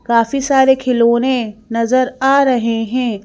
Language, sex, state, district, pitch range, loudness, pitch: Hindi, female, Madhya Pradesh, Bhopal, 230-265 Hz, -14 LUFS, 250 Hz